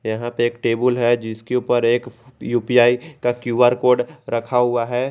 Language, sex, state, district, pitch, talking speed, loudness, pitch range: Hindi, male, Jharkhand, Garhwa, 120 Hz, 175 wpm, -19 LUFS, 120-125 Hz